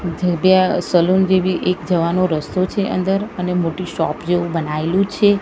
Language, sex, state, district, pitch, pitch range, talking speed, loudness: Gujarati, female, Gujarat, Gandhinagar, 180 Hz, 170-185 Hz, 145 wpm, -18 LUFS